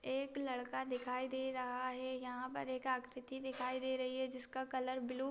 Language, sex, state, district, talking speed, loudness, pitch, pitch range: Hindi, female, Bihar, Saharsa, 205 wpm, -42 LUFS, 255 Hz, 255-260 Hz